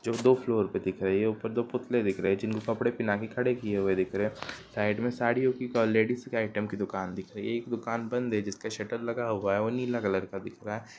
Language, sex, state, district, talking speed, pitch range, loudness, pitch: Hindi, male, Bihar, Sitamarhi, 280 wpm, 105-120 Hz, -30 LUFS, 115 Hz